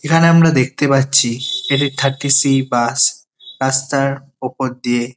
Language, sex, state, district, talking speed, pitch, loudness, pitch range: Bengali, male, West Bengal, Kolkata, 130 wpm, 135 Hz, -15 LUFS, 130-140 Hz